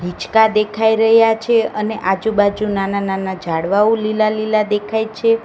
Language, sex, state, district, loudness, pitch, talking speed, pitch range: Gujarati, female, Gujarat, Gandhinagar, -16 LUFS, 215 Hz, 145 wpm, 200-220 Hz